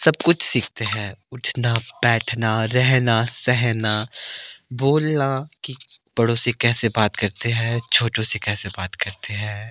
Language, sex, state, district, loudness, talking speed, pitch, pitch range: Hindi, male, Himachal Pradesh, Shimla, -21 LUFS, 135 wpm, 115 Hz, 110-125 Hz